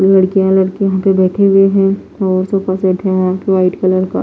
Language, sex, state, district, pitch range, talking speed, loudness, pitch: Hindi, female, Odisha, Nuapada, 185-195 Hz, 225 wpm, -13 LUFS, 190 Hz